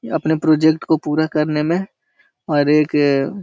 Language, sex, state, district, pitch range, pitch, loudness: Hindi, male, Bihar, Jahanabad, 150-170 Hz, 155 Hz, -17 LUFS